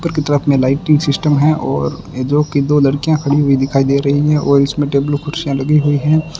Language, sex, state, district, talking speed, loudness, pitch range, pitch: Hindi, male, Rajasthan, Bikaner, 245 wpm, -14 LUFS, 140-150 Hz, 145 Hz